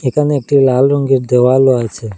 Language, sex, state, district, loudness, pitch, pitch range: Bengali, male, Assam, Hailakandi, -12 LUFS, 130 Hz, 125-140 Hz